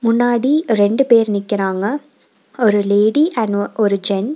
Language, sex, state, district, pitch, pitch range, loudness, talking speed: Tamil, female, Tamil Nadu, Nilgiris, 220 Hz, 205-245 Hz, -16 LUFS, 150 wpm